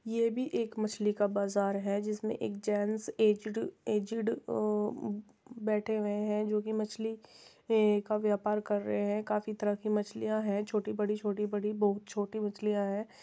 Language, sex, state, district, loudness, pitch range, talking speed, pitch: Hindi, female, Uttar Pradesh, Muzaffarnagar, -33 LUFS, 205-215 Hz, 170 wpm, 210 Hz